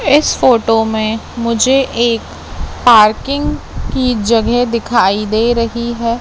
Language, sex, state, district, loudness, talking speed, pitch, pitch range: Hindi, female, Madhya Pradesh, Katni, -13 LUFS, 115 wpm, 235 Hz, 225-245 Hz